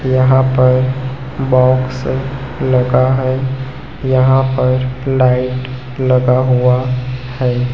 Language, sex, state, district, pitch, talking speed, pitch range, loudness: Hindi, male, Chhattisgarh, Raipur, 130 Hz, 85 wpm, 125-130 Hz, -14 LUFS